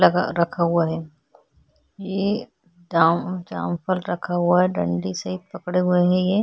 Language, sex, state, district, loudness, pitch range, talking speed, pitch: Hindi, female, Chhattisgarh, Korba, -22 LUFS, 165-185 Hz, 150 wpm, 175 Hz